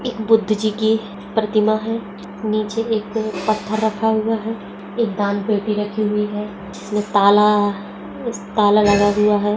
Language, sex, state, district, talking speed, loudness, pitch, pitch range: Hindi, female, Bihar, Darbhanga, 155 wpm, -19 LUFS, 210 Hz, 205-220 Hz